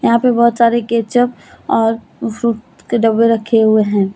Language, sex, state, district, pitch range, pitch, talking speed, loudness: Hindi, female, Jharkhand, Deoghar, 220-235 Hz, 230 Hz, 175 wpm, -14 LUFS